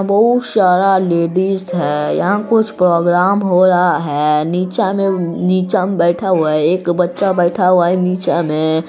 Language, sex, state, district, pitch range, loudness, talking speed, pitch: Hindi, female, Bihar, Araria, 170-195 Hz, -14 LUFS, 160 wpm, 180 Hz